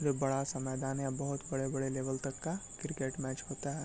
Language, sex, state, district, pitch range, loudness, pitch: Hindi, male, Bihar, Begusarai, 135-140 Hz, -37 LUFS, 135 Hz